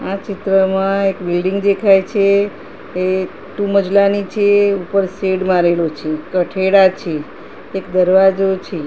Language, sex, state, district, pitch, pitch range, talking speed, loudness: Gujarati, female, Gujarat, Gandhinagar, 190 Hz, 185-200 Hz, 130 wpm, -15 LUFS